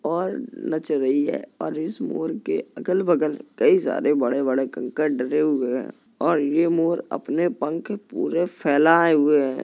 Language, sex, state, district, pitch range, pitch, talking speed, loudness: Hindi, female, Uttar Pradesh, Jalaun, 145-170 Hz, 155 Hz, 160 wpm, -22 LUFS